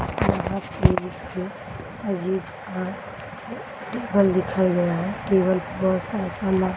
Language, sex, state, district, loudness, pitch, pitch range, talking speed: Hindi, female, Bihar, Samastipur, -24 LUFS, 190 Hz, 185-200 Hz, 140 wpm